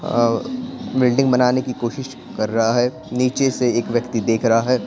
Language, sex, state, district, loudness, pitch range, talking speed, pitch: Hindi, male, Bihar, Patna, -19 LUFS, 115-130 Hz, 185 wpm, 125 Hz